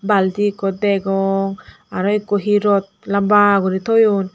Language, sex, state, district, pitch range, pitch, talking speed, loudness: Chakma, female, Tripura, Dhalai, 195-205 Hz, 200 Hz, 140 wpm, -17 LUFS